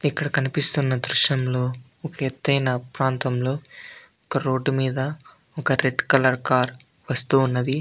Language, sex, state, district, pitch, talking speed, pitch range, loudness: Telugu, male, Andhra Pradesh, Anantapur, 130 Hz, 115 wpm, 130-140 Hz, -22 LUFS